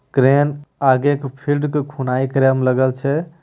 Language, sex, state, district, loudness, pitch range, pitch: Hindi, male, Bihar, Begusarai, -18 LUFS, 130-145 Hz, 140 Hz